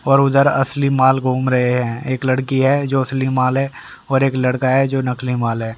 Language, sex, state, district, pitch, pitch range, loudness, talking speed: Hindi, male, Haryana, Rohtak, 130 Hz, 130-135 Hz, -17 LUFS, 230 wpm